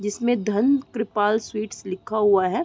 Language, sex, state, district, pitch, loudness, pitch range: Hindi, female, Uttar Pradesh, Deoria, 215 Hz, -23 LUFS, 205-230 Hz